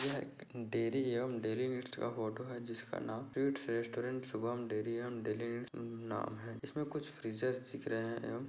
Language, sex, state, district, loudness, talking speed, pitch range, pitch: Hindi, male, Chhattisgarh, Korba, -40 LUFS, 175 wpm, 115-130 Hz, 120 Hz